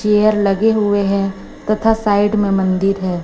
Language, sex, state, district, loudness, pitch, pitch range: Hindi, female, Chhattisgarh, Raipur, -16 LUFS, 205 Hz, 195-215 Hz